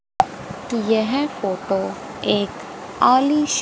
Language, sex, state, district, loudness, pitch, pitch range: Hindi, female, Haryana, Rohtak, -20 LUFS, 240 Hz, 200-280 Hz